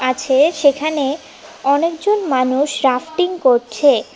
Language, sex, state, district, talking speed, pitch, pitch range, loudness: Bengali, female, West Bengal, Cooch Behar, 85 wpm, 285 Hz, 260-315 Hz, -16 LUFS